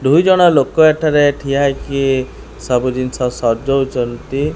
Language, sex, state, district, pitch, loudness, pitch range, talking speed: Odia, male, Odisha, Khordha, 135 Hz, -15 LUFS, 125-145 Hz, 120 wpm